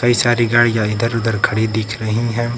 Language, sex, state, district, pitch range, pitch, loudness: Hindi, male, Uttar Pradesh, Lucknow, 110-120 Hz, 115 Hz, -16 LUFS